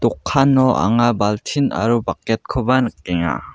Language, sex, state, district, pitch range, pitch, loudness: Garo, male, Meghalaya, West Garo Hills, 95-130 Hz, 115 Hz, -18 LUFS